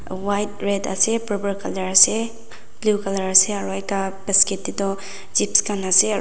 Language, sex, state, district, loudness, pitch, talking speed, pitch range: Nagamese, female, Nagaland, Dimapur, -19 LUFS, 200 Hz, 155 wpm, 195-205 Hz